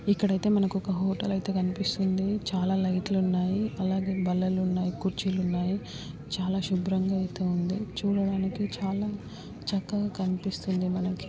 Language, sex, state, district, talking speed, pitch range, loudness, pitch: Telugu, female, Andhra Pradesh, Srikakulam, 130 wpm, 185-195 Hz, -29 LUFS, 190 Hz